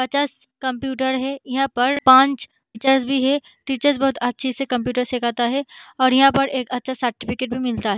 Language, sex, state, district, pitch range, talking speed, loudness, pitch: Hindi, female, Bihar, Samastipur, 250-275 Hz, 190 wpm, -20 LUFS, 260 Hz